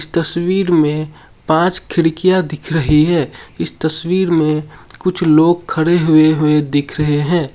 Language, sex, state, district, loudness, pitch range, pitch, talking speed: Hindi, male, Assam, Sonitpur, -15 LUFS, 150-175 Hz, 160 Hz, 150 wpm